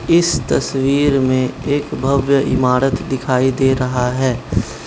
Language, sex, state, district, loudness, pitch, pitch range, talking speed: Hindi, male, Manipur, Imphal West, -16 LUFS, 130 Hz, 125-140 Hz, 125 wpm